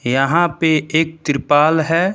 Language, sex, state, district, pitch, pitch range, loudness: Hindi, male, Uttar Pradesh, Lucknow, 160 Hz, 145-165 Hz, -16 LUFS